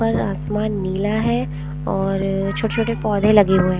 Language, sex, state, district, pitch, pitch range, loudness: Hindi, female, Punjab, Pathankot, 195 Hz, 185-215 Hz, -20 LUFS